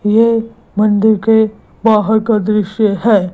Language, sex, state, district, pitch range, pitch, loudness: Hindi, female, Gujarat, Gandhinagar, 210-225 Hz, 215 Hz, -13 LUFS